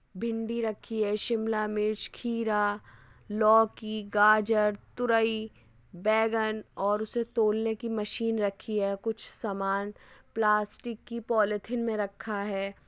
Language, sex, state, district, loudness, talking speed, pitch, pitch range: Hindi, female, Uttar Pradesh, Jyotiba Phule Nagar, -29 LUFS, 115 wpm, 215 Hz, 205-225 Hz